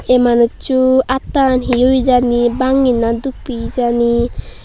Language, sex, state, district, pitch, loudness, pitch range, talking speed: Chakma, female, Tripura, Unakoti, 250 Hz, -14 LUFS, 240-260 Hz, 130 wpm